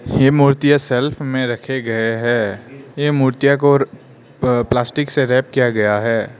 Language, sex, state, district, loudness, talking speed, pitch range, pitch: Hindi, male, Arunachal Pradesh, Lower Dibang Valley, -16 LUFS, 150 wpm, 120-140 Hz, 130 Hz